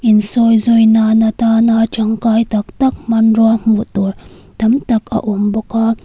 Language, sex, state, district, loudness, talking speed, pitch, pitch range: Mizo, female, Mizoram, Aizawl, -13 LUFS, 160 wpm, 225 Hz, 220-230 Hz